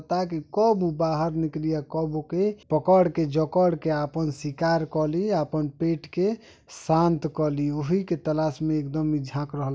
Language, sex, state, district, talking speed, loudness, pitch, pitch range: Bhojpuri, male, Uttar Pradesh, Deoria, 185 wpm, -25 LUFS, 160 Hz, 155-175 Hz